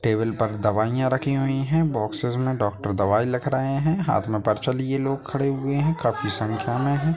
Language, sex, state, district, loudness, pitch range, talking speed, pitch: Hindi, male, Bihar, Sitamarhi, -23 LUFS, 110-140 Hz, 200 wpm, 130 Hz